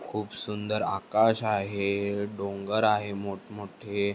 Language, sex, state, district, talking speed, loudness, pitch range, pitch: Marathi, male, Maharashtra, Dhule, 100 wpm, -29 LUFS, 100-105 Hz, 105 Hz